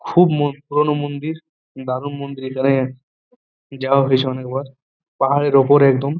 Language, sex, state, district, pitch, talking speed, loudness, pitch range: Bengali, male, West Bengal, Purulia, 140 Hz, 115 wpm, -18 LUFS, 130-145 Hz